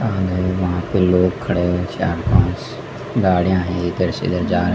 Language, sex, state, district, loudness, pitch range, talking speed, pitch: Hindi, male, Madhya Pradesh, Dhar, -19 LUFS, 90-95 Hz, 190 wpm, 90 Hz